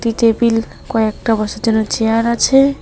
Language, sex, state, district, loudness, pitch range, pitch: Bengali, female, West Bengal, Alipurduar, -15 LUFS, 225-235 Hz, 225 Hz